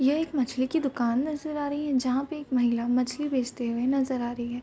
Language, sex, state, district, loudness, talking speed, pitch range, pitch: Hindi, female, Bihar, Vaishali, -28 LUFS, 260 wpm, 245-290 Hz, 260 Hz